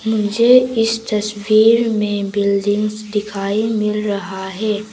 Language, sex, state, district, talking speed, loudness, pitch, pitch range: Hindi, female, Arunachal Pradesh, Papum Pare, 110 wpm, -17 LUFS, 210 Hz, 205-220 Hz